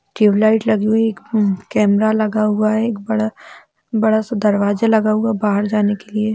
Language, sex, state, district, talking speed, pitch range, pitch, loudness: Hindi, female, Bihar, Sitamarhi, 200 wpm, 210-220 Hz, 215 Hz, -17 LUFS